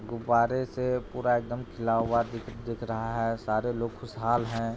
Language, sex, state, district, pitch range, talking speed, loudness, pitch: Hindi, male, Bihar, Supaul, 115-120 Hz, 175 wpm, -29 LUFS, 115 Hz